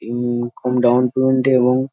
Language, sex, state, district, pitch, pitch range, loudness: Bengali, male, West Bengal, Jhargram, 125 Hz, 120-130 Hz, -17 LUFS